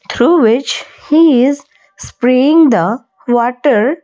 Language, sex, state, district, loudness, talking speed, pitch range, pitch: English, female, Odisha, Malkangiri, -11 LUFS, 105 wpm, 240-295 Hz, 260 Hz